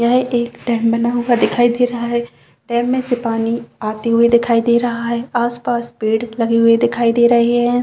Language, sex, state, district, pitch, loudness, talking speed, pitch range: Hindi, female, Chhattisgarh, Bastar, 235 Hz, -16 LUFS, 205 wpm, 230-240 Hz